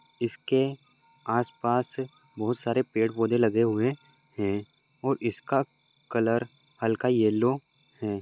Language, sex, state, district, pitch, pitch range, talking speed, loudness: Hindi, male, Maharashtra, Dhule, 125 Hz, 115-135 Hz, 115 wpm, -28 LUFS